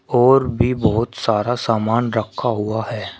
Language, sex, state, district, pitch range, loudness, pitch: Hindi, male, Uttar Pradesh, Shamli, 110-120 Hz, -18 LUFS, 115 Hz